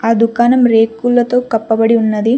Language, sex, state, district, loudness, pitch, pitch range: Telugu, female, Telangana, Mahabubabad, -12 LUFS, 230 Hz, 225-245 Hz